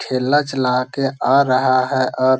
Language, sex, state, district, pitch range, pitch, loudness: Hindi, male, Bihar, Jahanabad, 130-135 Hz, 130 Hz, -17 LUFS